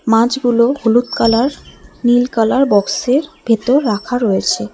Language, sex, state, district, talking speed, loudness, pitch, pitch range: Bengali, female, West Bengal, Alipurduar, 115 wpm, -14 LUFS, 240 Hz, 225-255 Hz